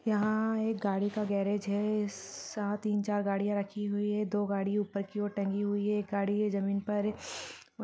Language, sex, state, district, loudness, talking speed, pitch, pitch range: Hindi, female, Chhattisgarh, Balrampur, -32 LUFS, 205 wpm, 205 Hz, 200-210 Hz